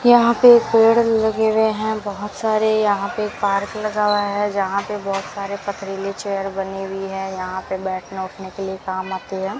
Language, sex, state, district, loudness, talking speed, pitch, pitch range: Hindi, female, Rajasthan, Bikaner, -20 LUFS, 210 wpm, 200 Hz, 195-215 Hz